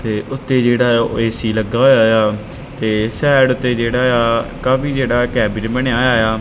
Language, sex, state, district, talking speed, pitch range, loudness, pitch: Punjabi, male, Punjab, Kapurthala, 185 wpm, 110-130 Hz, -15 LUFS, 120 Hz